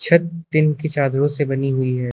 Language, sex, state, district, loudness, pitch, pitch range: Hindi, male, Uttar Pradesh, Lucknow, -19 LUFS, 145 Hz, 135-155 Hz